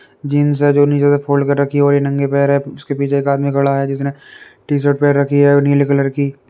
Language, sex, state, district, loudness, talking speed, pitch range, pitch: Hindi, male, Uttar Pradesh, Varanasi, -14 LUFS, 270 wpm, 140-145 Hz, 140 Hz